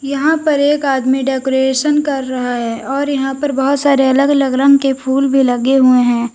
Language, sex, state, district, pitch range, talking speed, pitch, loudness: Hindi, female, Uttar Pradesh, Lalitpur, 260-280 Hz, 205 wpm, 270 Hz, -14 LUFS